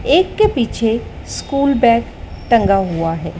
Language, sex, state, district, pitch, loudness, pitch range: Hindi, female, Madhya Pradesh, Dhar, 230 Hz, -16 LUFS, 195-275 Hz